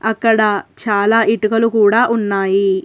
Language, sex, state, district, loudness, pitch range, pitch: Telugu, female, Telangana, Hyderabad, -14 LUFS, 200-225 Hz, 215 Hz